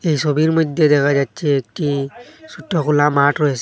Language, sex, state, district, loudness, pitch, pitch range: Bengali, male, Assam, Hailakandi, -17 LUFS, 150 Hz, 140-160 Hz